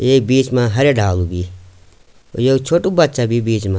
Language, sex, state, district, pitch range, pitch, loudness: Garhwali, male, Uttarakhand, Tehri Garhwal, 95-135 Hz, 120 Hz, -15 LUFS